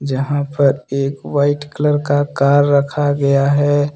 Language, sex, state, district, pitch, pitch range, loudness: Hindi, male, Jharkhand, Deoghar, 145 Hz, 140-145 Hz, -16 LUFS